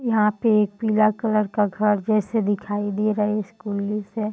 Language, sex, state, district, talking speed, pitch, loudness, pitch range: Hindi, female, Bihar, Bhagalpur, 195 wpm, 210 Hz, -22 LUFS, 205-215 Hz